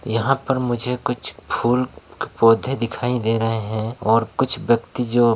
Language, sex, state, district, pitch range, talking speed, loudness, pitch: Hindi, male, Bihar, Begusarai, 115-125 Hz, 155 wpm, -21 LUFS, 120 Hz